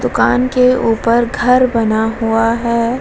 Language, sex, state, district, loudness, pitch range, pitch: Hindi, female, Bihar, Vaishali, -13 LUFS, 225-250 Hz, 235 Hz